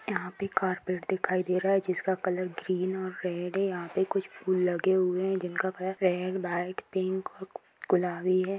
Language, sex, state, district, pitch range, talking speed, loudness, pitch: Hindi, female, Bihar, Sitamarhi, 180-190 Hz, 210 wpm, -30 LUFS, 185 Hz